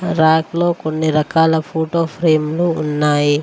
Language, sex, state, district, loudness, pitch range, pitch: Telugu, female, Telangana, Mahabubabad, -16 LUFS, 155-165 Hz, 160 Hz